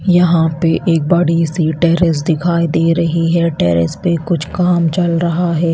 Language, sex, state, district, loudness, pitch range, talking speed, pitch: Hindi, female, Chhattisgarh, Raipur, -14 LUFS, 165-175 Hz, 180 wpm, 170 Hz